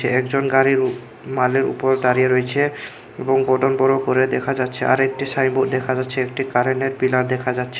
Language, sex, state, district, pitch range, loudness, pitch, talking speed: Bengali, male, Tripura, Unakoti, 130-135 Hz, -19 LUFS, 130 Hz, 170 wpm